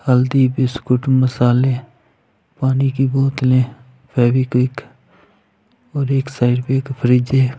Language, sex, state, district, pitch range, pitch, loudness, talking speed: Hindi, male, Punjab, Fazilka, 125-135 Hz, 130 Hz, -17 LUFS, 105 wpm